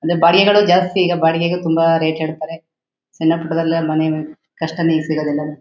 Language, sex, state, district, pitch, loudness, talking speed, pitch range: Kannada, female, Karnataka, Shimoga, 165 Hz, -16 LUFS, 150 wpm, 160-170 Hz